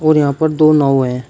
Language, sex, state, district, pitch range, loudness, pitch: Hindi, male, Uttar Pradesh, Shamli, 135-155 Hz, -13 LUFS, 150 Hz